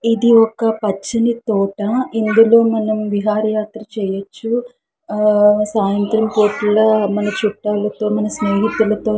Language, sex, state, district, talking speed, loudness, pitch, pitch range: Telugu, female, Andhra Pradesh, Krishna, 120 wpm, -16 LUFS, 215 Hz, 210-225 Hz